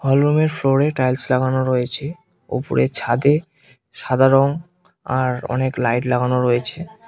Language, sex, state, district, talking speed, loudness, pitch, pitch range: Bengali, male, West Bengal, Cooch Behar, 145 wpm, -19 LUFS, 130 Hz, 125-150 Hz